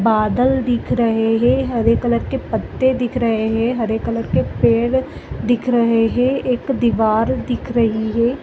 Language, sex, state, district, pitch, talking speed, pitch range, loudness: Hindi, female, Chhattisgarh, Bilaspur, 235 Hz, 165 wpm, 225-250 Hz, -18 LUFS